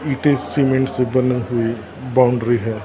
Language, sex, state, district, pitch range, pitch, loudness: Hindi, male, Maharashtra, Gondia, 120-135 Hz, 125 Hz, -18 LUFS